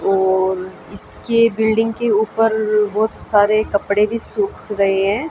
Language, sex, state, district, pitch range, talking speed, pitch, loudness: Hindi, female, Haryana, Jhajjar, 200-225 Hz, 135 wpm, 215 Hz, -17 LUFS